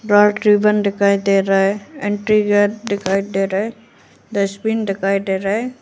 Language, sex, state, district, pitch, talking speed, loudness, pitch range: Hindi, female, Arunachal Pradesh, Lower Dibang Valley, 205 Hz, 175 wpm, -17 LUFS, 195-210 Hz